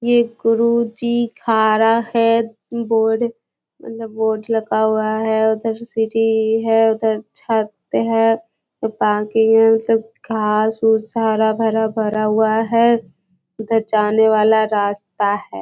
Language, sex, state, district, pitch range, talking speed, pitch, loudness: Hindi, female, Bihar, Jahanabad, 220-225 Hz, 105 wpm, 225 Hz, -17 LUFS